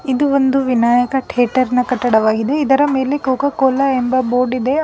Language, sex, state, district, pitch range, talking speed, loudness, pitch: Kannada, female, Karnataka, Bangalore, 250-275 Hz, 135 wpm, -15 LUFS, 260 Hz